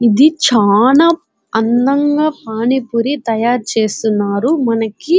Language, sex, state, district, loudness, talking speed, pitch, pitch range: Telugu, female, Andhra Pradesh, Chittoor, -14 LUFS, 90 wpm, 240 Hz, 225-290 Hz